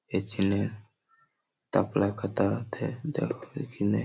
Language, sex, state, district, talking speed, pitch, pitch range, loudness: Bengali, male, West Bengal, Malda, 75 wpm, 110 Hz, 100-150 Hz, -30 LUFS